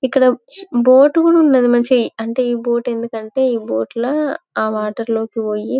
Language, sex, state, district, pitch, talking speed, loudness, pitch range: Telugu, female, Telangana, Karimnagar, 240 Hz, 175 wpm, -16 LUFS, 225-260 Hz